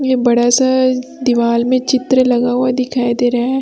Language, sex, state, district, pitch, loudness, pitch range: Hindi, female, Chhattisgarh, Raipur, 250 Hz, -14 LUFS, 245-260 Hz